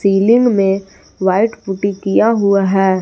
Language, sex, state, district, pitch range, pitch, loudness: Hindi, female, Jharkhand, Palamu, 195-210 Hz, 195 Hz, -14 LUFS